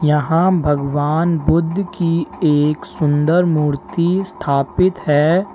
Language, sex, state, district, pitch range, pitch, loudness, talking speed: Hindi, male, Uttar Pradesh, Lalitpur, 150-175 Hz, 160 Hz, -17 LUFS, 95 wpm